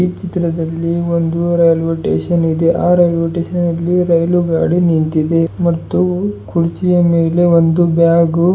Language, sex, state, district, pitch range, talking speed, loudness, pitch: Kannada, male, Karnataka, Bidar, 165-175 Hz, 125 wpm, -14 LUFS, 170 Hz